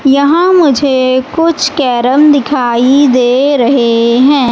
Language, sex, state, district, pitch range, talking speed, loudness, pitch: Hindi, female, Madhya Pradesh, Katni, 250-285 Hz, 105 wpm, -9 LUFS, 270 Hz